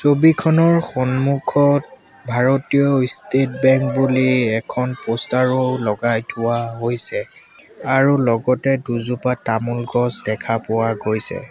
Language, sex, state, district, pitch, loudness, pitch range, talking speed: Assamese, male, Assam, Sonitpur, 130 Hz, -18 LUFS, 120-135 Hz, 105 wpm